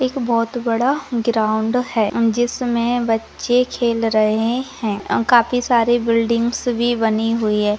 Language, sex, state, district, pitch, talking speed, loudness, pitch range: Hindi, female, Rajasthan, Nagaur, 235 Hz, 130 wpm, -18 LUFS, 225-245 Hz